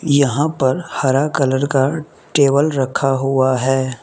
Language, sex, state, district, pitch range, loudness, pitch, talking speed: Hindi, male, Mizoram, Aizawl, 130-145 Hz, -17 LUFS, 135 Hz, 135 wpm